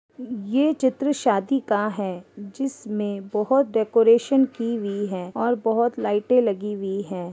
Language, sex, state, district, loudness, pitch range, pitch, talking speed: Hindi, female, Uttar Pradesh, Ghazipur, -23 LUFS, 205-255 Hz, 225 Hz, 140 wpm